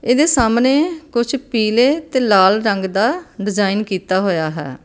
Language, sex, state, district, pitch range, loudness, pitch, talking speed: Punjabi, female, Karnataka, Bangalore, 195-260 Hz, -16 LUFS, 225 Hz, 150 wpm